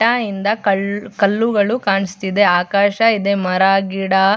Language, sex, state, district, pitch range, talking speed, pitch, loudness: Kannada, female, Karnataka, Chamarajanagar, 195-210 Hz, 125 wpm, 200 Hz, -16 LUFS